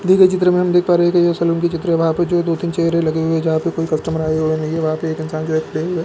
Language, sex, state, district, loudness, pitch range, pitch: Hindi, male, Bihar, Lakhisarai, -17 LUFS, 160-175 Hz, 165 Hz